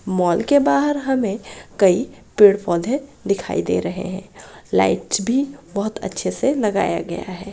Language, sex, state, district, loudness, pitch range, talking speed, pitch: Hindi, female, Bihar, Kishanganj, -19 LUFS, 185-255 Hz, 150 wpm, 200 Hz